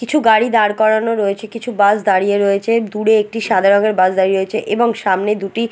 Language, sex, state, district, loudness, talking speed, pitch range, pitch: Bengali, female, Bihar, Katihar, -15 LUFS, 210 wpm, 200-225 Hz, 215 Hz